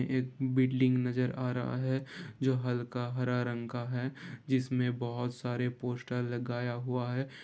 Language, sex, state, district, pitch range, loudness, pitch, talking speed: Hindi, male, Bihar, Gopalganj, 120-130 Hz, -33 LUFS, 125 Hz, 160 wpm